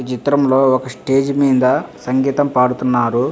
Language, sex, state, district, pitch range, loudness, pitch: Telugu, male, Andhra Pradesh, Visakhapatnam, 125-140 Hz, -15 LUFS, 130 Hz